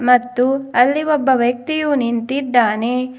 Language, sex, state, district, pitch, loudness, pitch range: Kannada, female, Karnataka, Bidar, 255 Hz, -16 LUFS, 245-275 Hz